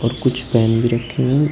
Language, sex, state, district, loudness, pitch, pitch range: Hindi, male, Uttar Pradesh, Shamli, -18 LUFS, 120 Hz, 115-130 Hz